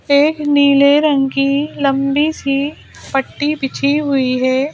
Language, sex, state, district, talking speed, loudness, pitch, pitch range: Hindi, female, Madhya Pradesh, Bhopal, 140 wpm, -15 LUFS, 280 Hz, 275-295 Hz